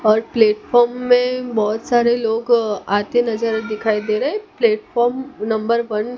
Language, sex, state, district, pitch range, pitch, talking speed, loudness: Hindi, male, Gujarat, Gandhinagar, 215-245 Hz, 235 Hz, 155 wpm, -18 LUFS